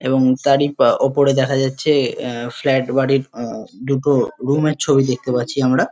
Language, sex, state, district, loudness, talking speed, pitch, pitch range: Bengali, male, West Bengal, Jalpaiguri, -17 LUFS, 160 wpm, 135 Hz, 130-140 Hz